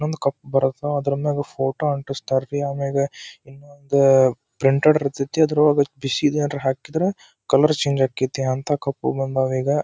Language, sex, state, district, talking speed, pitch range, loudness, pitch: Kannada, male, Karnataka, Dharwad, 135 wpm, 135-145 Hz, -21 LUFS, 140 Hz